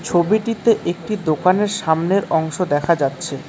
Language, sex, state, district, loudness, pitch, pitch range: Bengali, male, West Bengal, Cooch Behar, -18 LUFS, 175 Hz, 160-200 Hz